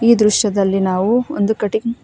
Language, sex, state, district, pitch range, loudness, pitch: Kannada, female, Karnataka, Koppal, 200-235 Hz, -16 LUFS, 215 Hz